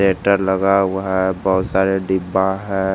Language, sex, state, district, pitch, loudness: Hindi, male, Bihar, Jamui, 95 Hz, -18 LUFS